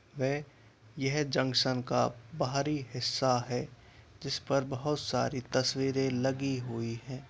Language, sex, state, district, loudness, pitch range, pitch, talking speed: Hindi, male, Bihar, Purnia, -32 LUFS, 120-140 Hz, 130 Hz, 115 wpm